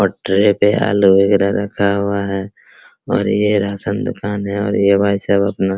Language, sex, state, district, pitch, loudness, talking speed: Hindi, male, Bihar, Araria, 100 Hz, -16 LUFS, 185 wpm